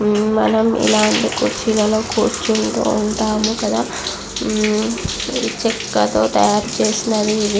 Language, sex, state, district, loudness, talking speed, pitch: Telugu, female, Andhra Pradesh, Visakhapatnam, -17 LUFS, 80 wpm, 210 Hz